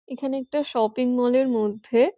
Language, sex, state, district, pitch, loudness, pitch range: Bengali, female, West Bengal, Jhargram, 250 Hz, -23 LUFS, 235-270 Hz